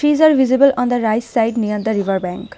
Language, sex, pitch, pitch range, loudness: English, female, 230 Hz, 210-270 Hz, -16 LUFS